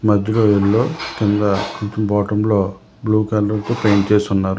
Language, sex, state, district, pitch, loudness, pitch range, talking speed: Telugu, male, Telangana, Hyderabad, 105 Hz, -17 LUFS, 100-110 Hz, 120 wpm